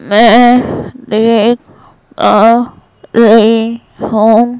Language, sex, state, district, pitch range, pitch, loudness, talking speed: Hindi, female, Madhya Pradesh, Bhopal, 220-240 Hz, 230 Hz, -9 LUFS, 65 wpm